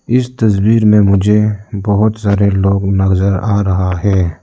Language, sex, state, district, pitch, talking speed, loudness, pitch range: Hindi, male, Arunachal Pradesh, Lower Dibang Valley, 100 Hz, 150 wpm, -12 LUFS, 95-105 Hz